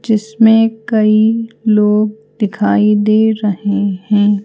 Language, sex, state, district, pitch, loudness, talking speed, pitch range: Hindi, female, Madhya Pradesh, Bhopal, 215 Hz, -13 LUFS, 95 wpm, 210-220 Hz